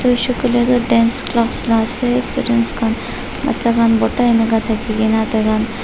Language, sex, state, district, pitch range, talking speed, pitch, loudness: Nagamese, female, Nagaland, Dimapur, 220-245 Hz, 175 wpm, 230 Hz, -16 LUFS